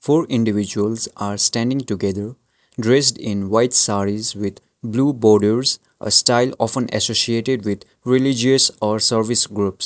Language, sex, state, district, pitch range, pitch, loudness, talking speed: English, male, Sikkim, Gangtok, 105-125 Hz, 115 Hz, -18 LUFS, 130 wpm